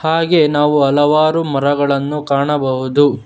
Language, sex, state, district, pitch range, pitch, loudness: Kannada, male, Karnataka, Bangalore, 140-155 Hz, 145 Hz, -14 LUFS